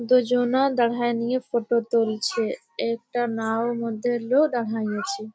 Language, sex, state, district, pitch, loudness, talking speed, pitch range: Bengali, female, West Bengal, Malda, 235 Hz, -24 LUFS, 125 wpm, 230-250 Hz